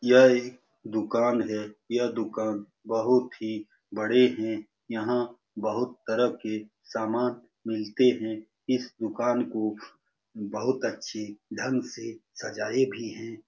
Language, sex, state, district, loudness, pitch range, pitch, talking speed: Hindi, male, Bihar, Saran, -28 LUFS, 110-125 Hz, 115 Hz, 120 wpm